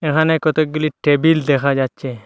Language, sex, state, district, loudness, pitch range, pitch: Bengali, male, Assam, Hailakandi, -16 LUFS, 140-155 Hz, 150 Hz